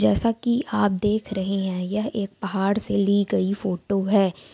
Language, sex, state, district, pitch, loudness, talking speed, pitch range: Hindi, female, Jharkhand, Sahebganj, 200 Hz, -23 LUFS, 185 wpm, 190-210 Hz